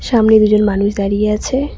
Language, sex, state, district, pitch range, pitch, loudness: Bengali, female, West Bengal, Cooch Behar, 205-220 Hz, 210 Hz, -13 LUFS